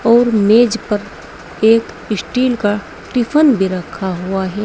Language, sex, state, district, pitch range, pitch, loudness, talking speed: Hindi, female, Uttar Pradesh, Saharanpur, 205-240 Hz, 220 Hz, -15 LUFS, 140 wpm